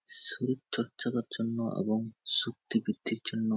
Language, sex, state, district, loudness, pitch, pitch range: Bengali, male, West Bengal, Jhargram, -31 LUFS, 115 Hz, 110-125 Hz